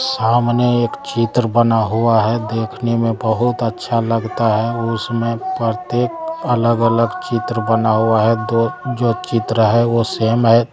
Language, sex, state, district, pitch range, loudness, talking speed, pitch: Hindi, male, Bihar, Araria, 115-120 Hz, -17 LUFS, 145 wpm, 115 Hz